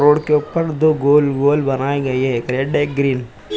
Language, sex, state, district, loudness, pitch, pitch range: Hindi, male, Uttar Pradesh, Hamirpur, -17 LUFS, 145 Hz, 135-150 Hz